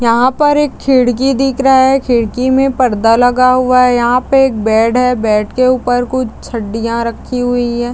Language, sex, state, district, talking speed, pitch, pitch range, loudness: Hindi, female, Bihar, Madhepura, 195 wpm, 250 Hz, 235-260 Hz, -12 LUFS